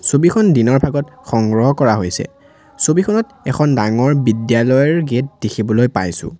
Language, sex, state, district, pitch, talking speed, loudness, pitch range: Assamese, male, Assam, Sonitpur, 130 Hz, 120 wpm, -15 LUFS, 110-145 Hz